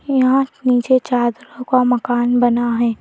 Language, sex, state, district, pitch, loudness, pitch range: Hindi, female, Madhya Pradesh, Bhopal, 245 Hz, -16 LUFS, 240-255 Hz